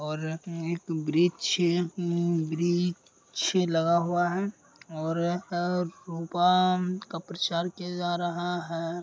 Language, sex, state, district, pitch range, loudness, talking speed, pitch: Hindi, male, Bihar, Purnia, 165-180 Hz, -28 LUFS, 115 wpm, 175 Hz